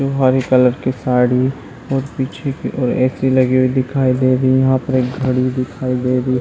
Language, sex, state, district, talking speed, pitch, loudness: Hindi, male, Chhattisgarh, Bilaspur, 215 wpm, 130 Hz, -16 LUFS